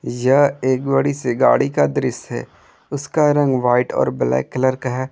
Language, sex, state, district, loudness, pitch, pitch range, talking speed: Hindi, male, Jharkhand, Garhwa, -18 LUFS, 130 Hz, 125-140 Hz, 185 wpm